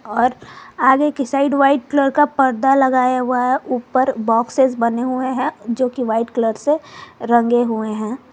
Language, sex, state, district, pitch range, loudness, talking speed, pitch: Hindi, female, Jharkhand, Garhwa, 235-275 Hz, -17 LUFS, 175 wpm, 255 Hz